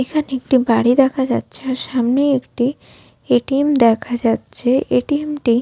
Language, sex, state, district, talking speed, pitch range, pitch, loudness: Bengali, female, West Bengal, Jhargram, 150 wpm, 240-275 Hz, 260 Hz, -17 LUFS